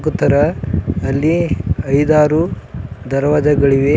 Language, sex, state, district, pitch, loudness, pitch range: Kannada, male, Karnataka, Bidar, 145 Hz, -15 LUFS, 135-150 Hz